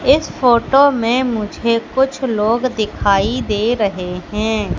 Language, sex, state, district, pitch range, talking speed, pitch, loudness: Hindi, female, Madhya Pradesh, Katni, 210-255 Hz, 125 wpm, 230 Hz, -16 LUFS